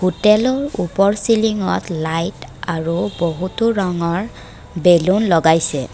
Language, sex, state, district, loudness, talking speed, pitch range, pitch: Assamese, female, Assam, Kamrup Metropolitan, -17 LUFS, 90 wpm, 165-210 Hz, 180 Hz